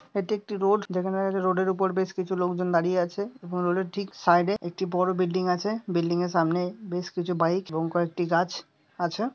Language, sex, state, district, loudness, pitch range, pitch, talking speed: Bengali, male, West Bengal, Dakshin Dinajpur, -27 LUFS, 175-190 Hz, 180 Hz, 200 wpm